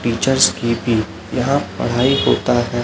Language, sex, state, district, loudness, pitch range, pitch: Hindi, male, Chhattisgarh, Raipur, -17 LUFS, 115-130 Hz, 120 Hz